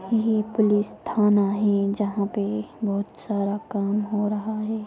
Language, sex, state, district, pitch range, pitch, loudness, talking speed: Hindi, female, Uttar Pradesh, Budaun, 200-215 Hz, 210 Hz, -24 LUFS, 150 wpm